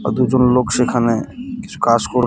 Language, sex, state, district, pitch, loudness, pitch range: Bengali, male, West Bengal, Cooch Behar, 125 Hz, -16 LUFS, 120-130 Hz